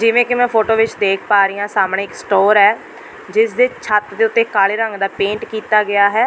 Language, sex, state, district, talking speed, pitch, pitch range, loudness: Punjabi, female, Delhi, New Delhi, 240 wpm, 210 Hz, 200-230 Hz, -15 LUFS